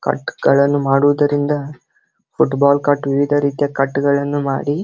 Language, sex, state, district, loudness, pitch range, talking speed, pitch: Kannada, male, Karnataka, Belgaum, -16 LUFS, 140-145 Hz, 135 wpm, 140 Hz